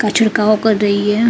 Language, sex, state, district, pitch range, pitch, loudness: Hindi, female, Uttar Pradesh, Hamirpur, 205-220 Hz, 215 Hz, -14 LUFS